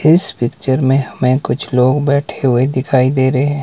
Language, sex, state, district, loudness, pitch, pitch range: Hindi, male, Himachal Pradesh, Shimla, -14 LUFS, 130 Hz, 130-140 Hz